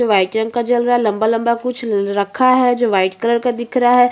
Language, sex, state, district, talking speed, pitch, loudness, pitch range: Hindi, female, Chhattisgarh, Bastar, 275 wpm, 235 Hz, -16 LUFS, 215-245 Hz